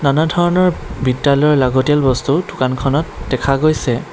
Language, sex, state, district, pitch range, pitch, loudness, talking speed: Assamese, male, Assam, Kamrup Metropolitan, 130-155 Hz, 140 Hz, -15 LUFS, 100 wpm